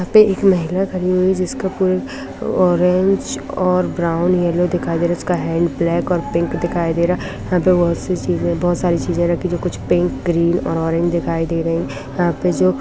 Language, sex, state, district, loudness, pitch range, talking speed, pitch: Hindi, female, Bihar, Saharsa, -18 LUFS, 170-180 Hz, 235 wpm, 175 Hz